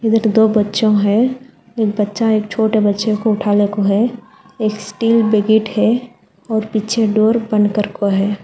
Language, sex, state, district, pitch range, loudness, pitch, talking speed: Hindi, female, Telangana, Hyderabad, 210-225 Hz, -15 LUFS, 215 Hz, 170 wpm